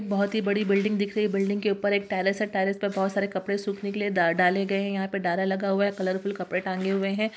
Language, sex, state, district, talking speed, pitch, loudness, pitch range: Hindi, female, Bihar, Purnia, 325 wpm, 200 Hz, -26 LUFS, 190-205 Hz